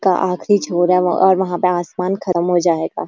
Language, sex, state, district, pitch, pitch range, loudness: Hindi, female, Uttarakhand, Uttarkashi, 180 Hz, 175-190 Hz, -16 LUFS